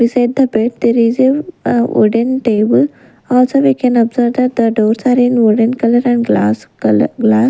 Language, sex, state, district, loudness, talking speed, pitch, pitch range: English, female, Punjab, Kapurthala, -13 LUFS, 200 wpm, 240 Hz, 225-250 Hz